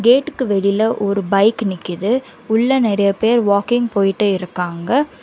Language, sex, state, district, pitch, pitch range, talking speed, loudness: Tamil, female, Karnataka, Bangalore, 210 Hz, 195-240 Hz, 125 wpm, -17 LUFS